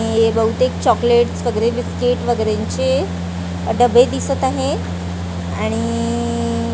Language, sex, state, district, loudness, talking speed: Marathi, female, Maharashtra, Gondia, -18 LUFS, 105 wpm